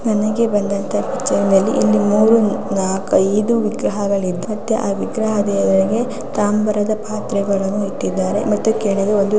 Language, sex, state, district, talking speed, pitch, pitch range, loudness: Kannada, female, Karnataka, Raichur, 130 wpm, 205 Hz, 200-215 Hz, -17 LUFS